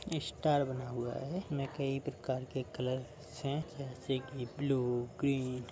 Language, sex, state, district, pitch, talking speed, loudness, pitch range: Hindi, male, Uttar Pradesh, Muzaffarnagar, 135 Hz, 155 wpm, -37 LUFS, 125-145 Hz